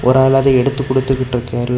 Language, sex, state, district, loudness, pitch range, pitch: Tamil, male, Tamil Nadu, Kanyakumari, -14 LUFS, 125-135 Hz, 130 Hz